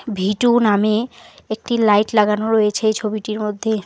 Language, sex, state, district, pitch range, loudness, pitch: Bengali, female, West Bengal, Alipurduar, 210-225 Hz, -17 LUFS, 215 Hz